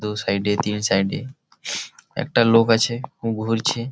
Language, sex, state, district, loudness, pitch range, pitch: Bengali, male, West Bengal, Malda, -21 LUFS, 105-120 Hz, 115 Hz